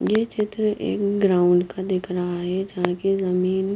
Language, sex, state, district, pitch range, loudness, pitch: Hindi, female, Haryana, Jhajjar, 180-200 Hz, -22 LUFS, 190 Hz